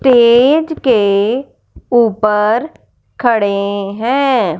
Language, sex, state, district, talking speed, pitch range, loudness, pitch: Hindi, female, Punjab, Fazilka, 65 wpm, 210-260 Hz, -13 LUFS, 235 Hz